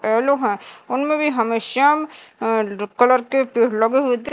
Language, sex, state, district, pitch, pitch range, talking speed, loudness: Hindi, female, Madhya Pradesh, Dhar, 245 Hz, 225-275 Hz, 180 wpm, -19 LUFS